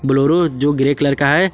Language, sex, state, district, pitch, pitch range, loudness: Hindi, male, Jharkhand, Garhwa, 145 Hz, 140-165 Hz, -15 LUFS